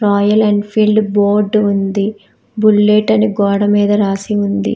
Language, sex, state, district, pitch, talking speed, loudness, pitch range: Telugu, female, Telangana, Hyderabad, 205 Hz, 125 wpm, -13 LUFS, 200-215 Hz